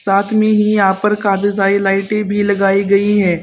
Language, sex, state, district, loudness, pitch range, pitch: Hindi, female, Uttar Pradesh, Saharanpur, -14 LUFS, 195-210 Hz, 200 Hz